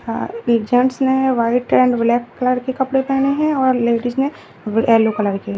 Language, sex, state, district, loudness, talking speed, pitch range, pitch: Hindi, female, Uttar Pradesh, Lalitpur, -17 LUFS, 170 wpm, 230-265 Hz, 245 Hz